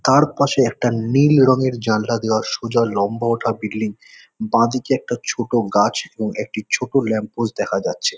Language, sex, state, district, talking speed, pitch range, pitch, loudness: Bengali, male, West Bengal, Kolkata, 160 wpm, 110-130 Hz, 115 Hz, -19 LUFS